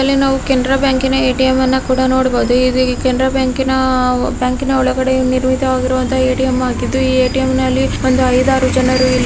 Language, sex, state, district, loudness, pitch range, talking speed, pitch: Kannada, female, Karnataka, Gulbarga, -14 LUFS, 255-265 Hz, 175 wpm, 260 Hz